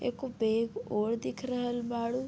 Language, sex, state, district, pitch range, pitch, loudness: Bhojpuri, female, Uttar Pradesh, Deoria, 225-250 Hz, 240 Hz, -33 LUFS